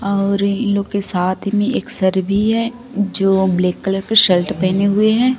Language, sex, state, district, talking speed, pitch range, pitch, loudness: Hindi, female, Chhattisgarh, Raipur, 200 wpm, 190-215 Hz, 200 Hz, -16 LUFS